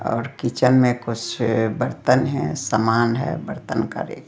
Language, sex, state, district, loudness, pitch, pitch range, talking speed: Hindi, female, Bihar, Patna, -21 LUFS, 120 Hz, 115-130 Hz, 140 wpm